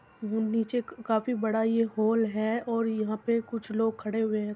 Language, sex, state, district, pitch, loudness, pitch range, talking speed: Hindi, female, Uttar Pradesh, Muzaffarnagar, 225 Hz, -29 LUFS, 215-230 Hz, 195 wpm